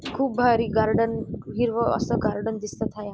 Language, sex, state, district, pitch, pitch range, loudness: Marathi, female, Maharashtra, Dhule, 225 Hz, 215-240 Hz, -24 LUFS